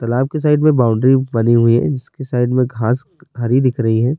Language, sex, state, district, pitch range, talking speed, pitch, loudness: Urdu, male, Bihar, Saharsa, 120-135 Hz, 245 wpm, 125 Hz, -15 LUFS